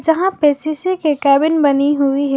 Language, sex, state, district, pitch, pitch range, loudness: Hindi, female, Jharkhand, Garhwa, 295 Hz, 280-320 Hz, -15 LUFS